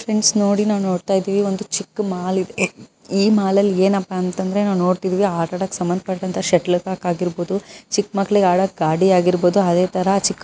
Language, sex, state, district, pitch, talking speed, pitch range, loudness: Kannada, female, Karnataka, Bijapur, 190 Hz, 180 wpm, 180-200 Hz, -19 LUFS